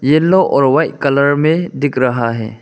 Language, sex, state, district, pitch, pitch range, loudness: Hindi, male, Arunachal Pradesh, Lower Dibang Valley, 140 Hz, 130-155 Hz, -13 LUFS